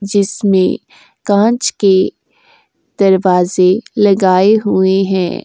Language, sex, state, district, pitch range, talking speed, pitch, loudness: Hindi, female, Uttar Pradesh, Jyotiba Phule Nagar, 190-210 Hz, 75 wpm, 195 Hz, -12 LUFS